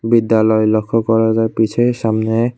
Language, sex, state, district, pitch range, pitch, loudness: Bengali, male, Tripura, West Tripura, 110-115 Hz, 115 Hz, -15 LUFS